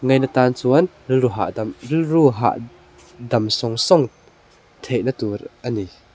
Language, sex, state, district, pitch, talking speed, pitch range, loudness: Mizo, male, Mizoram, Aizawl, 125 Hz, 145 wpm, 115-130 Hz, -19 LUFS